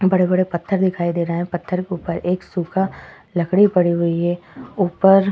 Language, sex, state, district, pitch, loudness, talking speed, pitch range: Hindi, female, Uttar Pradesh, Etah, 180 Hz, -19 LUFS, 180 wpm, 170-190 Hz